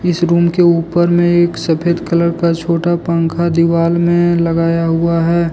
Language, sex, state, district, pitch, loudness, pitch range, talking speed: Hindi, male, Jharkhand, Deoghar, 170 Hz, -13 LUFS, 165-170 Hz, 175 wpm